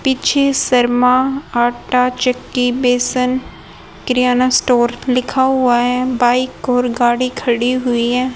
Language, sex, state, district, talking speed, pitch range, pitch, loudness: Hindi, female, Haryana, Charkhi Dadri, 115 wpm, 245-255 Hz, 250 Hz, -15 LUFS